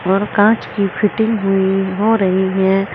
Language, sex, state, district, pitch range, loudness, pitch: Hindi, female, Uttar Pradesh, Saharanpur, 190-210 Hz, -15 LUFS, 195 Hz